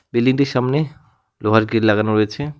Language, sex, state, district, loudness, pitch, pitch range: Bengali, male, West Bengal, Alipurduar, -18 LUFS, 125 Hz, 110-140 Hz